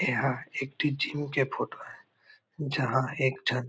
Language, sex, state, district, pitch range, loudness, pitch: Chhattisgarhi, male, Chhattisgarh, Raigarh, 130-145 Hz, -30 LUFS, 135 Hz